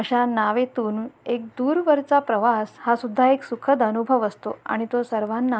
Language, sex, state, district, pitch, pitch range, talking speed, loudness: Marathi, female, Maharashtra, Sindhudurg, 240 Hz, 225-260 Hz, 150 wpm, -22 LUFS